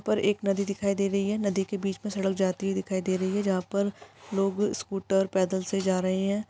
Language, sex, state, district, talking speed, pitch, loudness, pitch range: Maithili, female, Bihar, Araria, 250 wpm, 195 Hz, -28 LUFS, 190-200 Hz